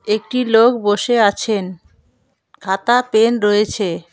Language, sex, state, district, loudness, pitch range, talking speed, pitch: Bengali, female, West Bengal, Alipurduar, -16 LUFS, 200-230 Hz, 100 wpm, 215 Hz